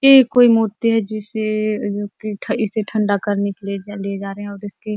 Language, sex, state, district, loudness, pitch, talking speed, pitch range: Hindi, female, Chhattisgarh, Bastar, -18 LUFS, 210 Hz, 180 wpm, 200-220 Hz